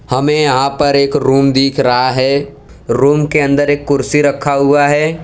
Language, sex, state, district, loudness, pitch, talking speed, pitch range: Hindi, male, Gujarat, Valsad, -12 LUFS, 140 Hz, 185 wpm, 135-145 Hz